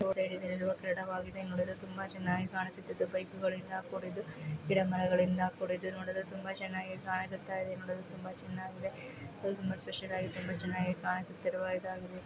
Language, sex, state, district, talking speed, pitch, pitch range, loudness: Kannada, female, Karnataka, Chamarajanagar, 50 wpm, 185 Hz, 185-190 Hz, -37 LUFS